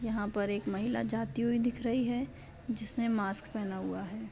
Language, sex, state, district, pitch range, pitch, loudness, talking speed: Hindi, female, Bihar, Jahanabad, 200-235 Hz, 225 Hz, -34 LUFS, 195 wpm